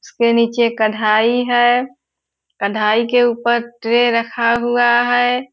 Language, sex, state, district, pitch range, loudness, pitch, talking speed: Hindi, female, Bihar, Purnia, 230-245 Hz, -15 LUFS, 235 Hz, 120 wpm